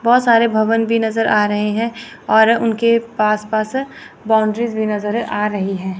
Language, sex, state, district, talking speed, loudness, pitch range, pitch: Hindi, female, Chandigarh, Chandigarh, 180 wpm, -16 LUFS, 210-230 Hz, 220 Hz